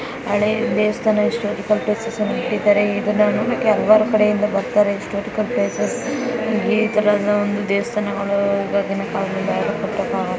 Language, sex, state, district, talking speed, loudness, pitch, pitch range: Kannada, female, Karnataka, Belgaum, 105 wpm, -19 LUFS, 210 Hz, 205-220 Hz